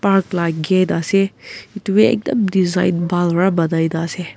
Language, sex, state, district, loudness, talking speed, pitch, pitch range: Nagamese, female, Nagaland, Kohima, -17 LUFS, 165 wpm, 180 Hz, 170-195 Hz